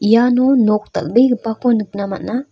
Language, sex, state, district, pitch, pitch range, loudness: Garo, female, Meghalaya, North Garo Hills, 230 Hz, 210-245 Hz, -16 LUFS